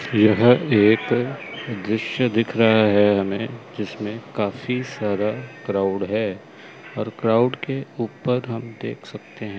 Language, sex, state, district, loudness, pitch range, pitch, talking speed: Hindi, male, Chandigarh, Chandigarh, -21 LUFS, 105-125 Hz, 110 Hz, 125 wpm